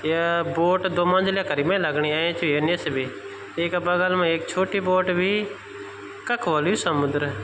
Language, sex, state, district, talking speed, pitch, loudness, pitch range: Garhwali, male, Uttarakhand, Tehri Garhwal, 175 wpm, 175 Hz, -23 LUFS, 155-185 Hz